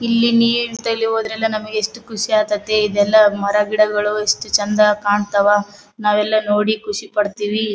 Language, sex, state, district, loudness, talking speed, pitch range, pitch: Kannada, female, Karnataka, Bellary, -17 LUFS, 130 wpm, 210-225 Hz, 215 Hz